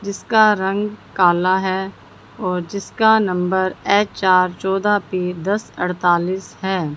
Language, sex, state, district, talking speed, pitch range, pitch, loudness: Hindi, female, Haryana, Jhajjar, 110 wpm, 180-200 Hz, 190 Hz, -18 LUFS